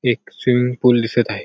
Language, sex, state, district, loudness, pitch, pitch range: Marathi, male, Maharashtra, Sindhudurg, -17 LUFS, 125 Hz, 120-125 Hz